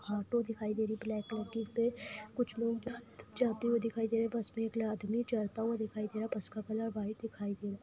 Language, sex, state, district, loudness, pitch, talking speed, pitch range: Hindi, female, Bihar, Vaishali, -37 LUFS, 225 Hz, 260 wpm, 215-230 Hz